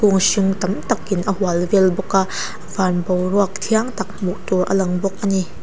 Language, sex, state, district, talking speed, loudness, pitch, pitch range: Mizo, female, Mizoram, Aizawl, 205 wpm, -19 LUFS, 190 Hz, 185-195 Hz